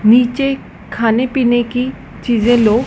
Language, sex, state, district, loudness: Hindi, female, Madhya Pradesh, Dhar, -15 LUFS